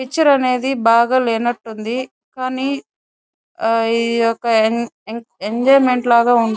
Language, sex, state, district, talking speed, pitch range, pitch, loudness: Telugu, female, Andhra Pradesh, Chittoor, 130 wpm, 230-255 Hz, 235 Hz, -16 LUFS